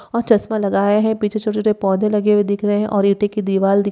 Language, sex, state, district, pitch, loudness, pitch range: Hindi, female, Uttar Pradesh, Ghazipur, 210 Hz, -17 LUFS, 200-215 Hz